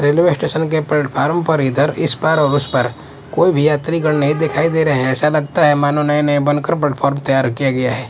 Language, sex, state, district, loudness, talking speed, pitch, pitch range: Hindi, male, Maharashtra, Mumbai Suburban, -16 LUFS, 235 wpm, 150 Hz, 140-155 Hz